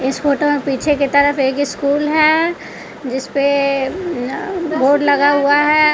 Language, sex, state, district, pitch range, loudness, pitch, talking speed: Hindi, female, Bihar, West Champaran, 275-300 Hz, -15 LUFS, 285 Hz, 140 wpm